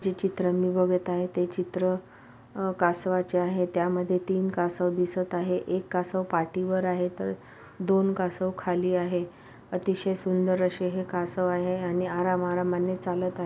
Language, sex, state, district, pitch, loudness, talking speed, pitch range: Marathi, female, Maharashtra, Pune, 180 Hz, -28 LUFS, 165 wpm, 180-185 Hz